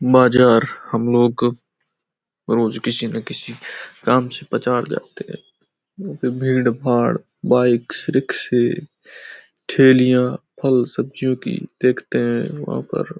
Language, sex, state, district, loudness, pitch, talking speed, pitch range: Hindi, male, Uttar Pradesh, Hamirpur, -18 LUFS, 125 Hz, 120 wpm, 120-130 Hz